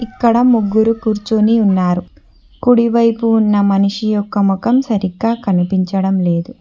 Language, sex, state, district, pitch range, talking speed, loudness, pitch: Telugu, female, Telangana, Hyderabad, 195-230 Hz, 120 wpm, -14 LUFS, 215 Hz